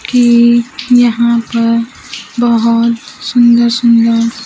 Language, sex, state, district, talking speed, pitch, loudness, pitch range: Hindi, female, Bihar, Kaimur, 80 wpm, 235 Hz, -10 LUFS, 230-240 Hz